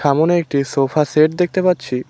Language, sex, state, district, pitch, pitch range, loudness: Bengali, male, West Bengal, Cooch Behar, 155 Hz, 140-175 Hz, -16 LUFS